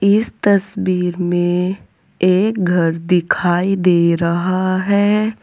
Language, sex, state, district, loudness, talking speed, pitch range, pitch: Hindi, female, Uttar Pradesh, Saharanpur, -16 LUFS, 100 wpm, 175-200 Hz, 185 Hz